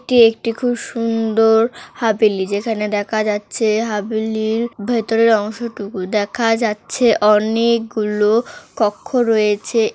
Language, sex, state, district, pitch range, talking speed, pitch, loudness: Bengali, female, West Bengal, North 24 Parganas, 210-230 Hz, 105 wpm, 225 Hz, -17 LUFS